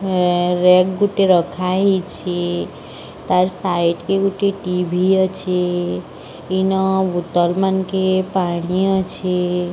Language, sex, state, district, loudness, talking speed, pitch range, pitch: Odia, female, Odisha, Sambalpur, -18 LUFS, 90 wpm, 180-190 Hz, 185 Hz